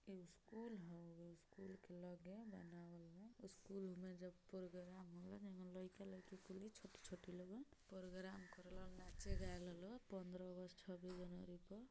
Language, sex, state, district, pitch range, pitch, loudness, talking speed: Hindi, female, Uttar Pradesh, Gorakhpur, 180-195 Hz, 185 Hz, -57 LUFS, 160 wpm